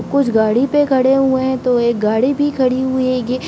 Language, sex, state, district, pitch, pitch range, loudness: Hindi, female, Bihar, Sitamarhi, 260 Hz, 245-270 Hz, -15 LUFS